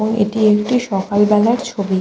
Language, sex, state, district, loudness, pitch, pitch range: Bengali, female, West Bengal, Kolkata, -16 LUFS, 210 Hz, 200-220 Hz